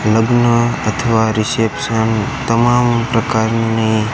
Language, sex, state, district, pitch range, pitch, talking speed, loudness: Gujarati, male, Gujarat, Gandhinagar, 110-120 Hz, 115 Hz, 70 wpm, -15 LUFS